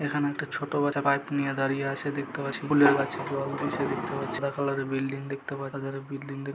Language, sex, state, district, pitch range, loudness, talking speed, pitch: Bengali, male, West Bengal, Malda, 135-140 Hz, -29 LUFS, 220 wpm, 140 Hz